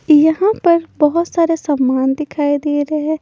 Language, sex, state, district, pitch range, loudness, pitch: Hindi, female, Punjab, Pathankot, 290-335 Hz, -15 LUFS, 305 Hz